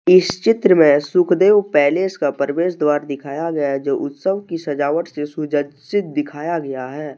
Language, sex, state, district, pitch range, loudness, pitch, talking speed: Hindi, male, Jharkhand, Deoghar, 145-180 Hz, -18 LUFS, 150 Hz, 165 wpm